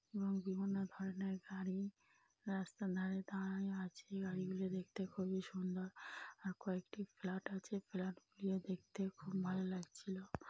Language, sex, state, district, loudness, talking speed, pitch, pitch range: Bengali, female, West Bengal, North 24 Parganas, -45 LUFS, 125 wpm, 190 Hz, 185-195 Hz